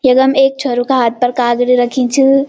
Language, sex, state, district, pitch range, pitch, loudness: Garhwali, female, Uttarakhand, Uttarkashi, 245-270 Hz, 255 Hz, -12 LUFS